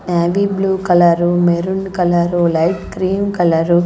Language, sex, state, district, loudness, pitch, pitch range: Telugu, female, Andhra Pradesh, Annamaya, -15 LUFS, 175 Hz, 170-190 Hz